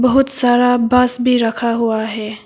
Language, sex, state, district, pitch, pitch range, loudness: Hindi, female, Arunachal Pradesh, Papum Pare, 245 Hz, 225-250 Hz, -15 LUFS